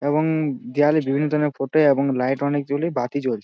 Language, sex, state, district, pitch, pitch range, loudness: Bengali, male, West Bengal, Dakshin Dinajpur, 145 Hz, 135-150 Hz, -21 LUFS